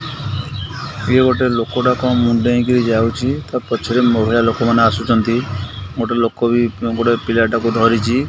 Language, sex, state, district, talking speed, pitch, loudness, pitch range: Odia, male, Odisha, Khordha, 130 wpm, 115 Hz, -16 LUFS, 115-125 Hz